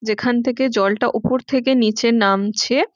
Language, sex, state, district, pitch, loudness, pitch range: Bengali, female, West Bengal, Jhargram, 235 Hz, -18 LUFS, 215-255 Hz